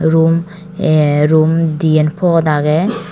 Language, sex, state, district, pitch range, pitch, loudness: Chakma, female, Tripura, Dhalai, 155-170 Hz, 160 Hz, -13 LUFS